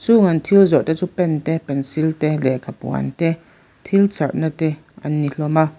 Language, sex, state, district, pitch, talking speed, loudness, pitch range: Mizo, female, Mizoram, Aizawl, 160 Hz, 220 wpm, -19 LUFS, 150-170 Hz